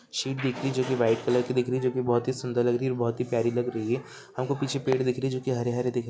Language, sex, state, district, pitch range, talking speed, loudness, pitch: Hindi, male, Jharkhand, Jamtara, 120-130 Hz, 345 wpm, -27 LUFS, 125 Hz